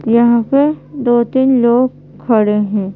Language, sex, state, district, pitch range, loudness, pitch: Hindi, female, Madhya Pradesh, Bhopal, 220-260 Hz, -13 LUFS, 235 Hz